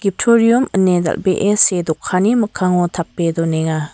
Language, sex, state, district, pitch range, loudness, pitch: Garo, female, Meghalaya, West Garo Hills, 170-205 Hz, -15 LUFS, 185 Hz